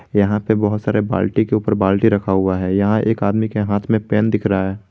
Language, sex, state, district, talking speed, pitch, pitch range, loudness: Hindi, male, Jharkhand, Garhwa, 255 wpm, 105 Hz, 100-110 Hz, -17 LUFS